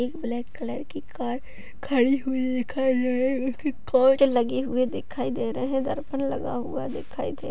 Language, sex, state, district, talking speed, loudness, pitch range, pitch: Hindi, female, Uttar Pradesh, Etah, 190 wpm, -26 LUFS, 250-270 Hz, 260 Hz